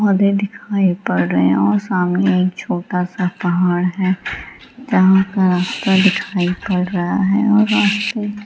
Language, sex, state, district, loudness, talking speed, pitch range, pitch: Hindi, female, Bihar, Gaya, -16 LUFS, 155 wpm, 180-205 Hz, 190 Hz